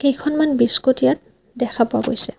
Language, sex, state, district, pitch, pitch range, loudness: Assamese, female, Assam, Kamrup Metropolitan, 260 Hz, 240-285 Hz, -16 LUFS